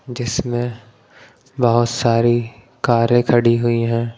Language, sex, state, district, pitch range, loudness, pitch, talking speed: Hindi, male, Punjab, Pathankot, 115-120 Hz, -17 LUFS, 120 Hz, 100 wpm